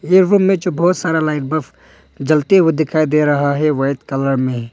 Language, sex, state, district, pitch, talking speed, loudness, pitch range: Hindi, male, Arunachal Pradesh, Longding, 155 Hz, 190 wpm, -15 LUFS, 140-175 Hz